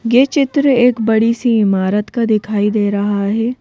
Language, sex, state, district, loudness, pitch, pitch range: Hindi, female, Madhya Pradesh, Bhopal, -14 LUFS, 225 Hz, 205-245 Hz